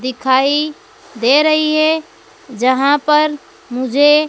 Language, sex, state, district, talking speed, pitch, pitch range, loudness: Hindi, female, Madhya Pradesh, Dhar, 100 wpm, 295 Hz, 260-310 Hz, -14 LUFS